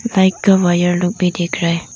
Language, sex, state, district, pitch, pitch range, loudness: Hindi, female, Arunachal Pradesh, Lower Dibang Valley, 180 Hz, 175-190 Hz, -15 LUFS